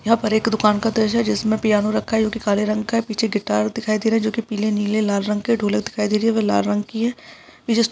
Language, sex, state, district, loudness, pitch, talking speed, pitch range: Hindi, male, Bihar, Gaya, -20 LUFS, 215 Hz, 295 wpm, 210-225 Hz